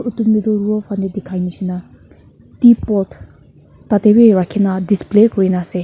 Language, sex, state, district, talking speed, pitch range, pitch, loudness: Nagamese, female, Nagaland, Kohima, 145 wpm, 180-215 Hz, 200 Hz, -14 LUFS